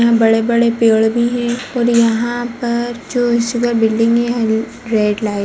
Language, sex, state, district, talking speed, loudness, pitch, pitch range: Hindi, female, Bihar, Gaya, 155 wpm, -15 LUFS, 235 Hz, 225-240 Hz